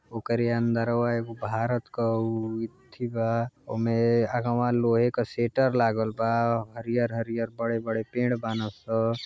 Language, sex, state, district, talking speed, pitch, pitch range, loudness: Bhojpuri, male, Uttar Pradesh, Deoria, 130 wpm, 115 Hz, 115-120 Hz, -27 LUFS